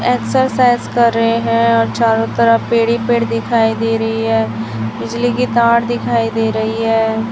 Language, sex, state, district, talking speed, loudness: Hindi, male, Chhattisgarh, Raipur, 170 wpm, -14 LUFS